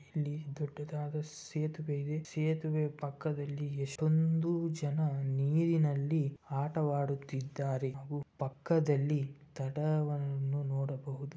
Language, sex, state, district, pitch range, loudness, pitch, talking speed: Kannada, male, Karnataka, Bellary, 140-155 Hz, -35 LUFS, 145 Hz, 75 wpm